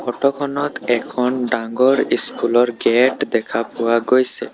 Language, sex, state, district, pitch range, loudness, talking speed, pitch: Assamese, male, Assam, Sonitpur, 120-130 Hz, -17 LUFS, 130 wpm, 125 Hz